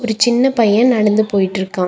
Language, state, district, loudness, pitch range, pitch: Tamil, Tamil Nadu, Nilgiris, -14 LUFS, 195-240 Hz, 215 Hz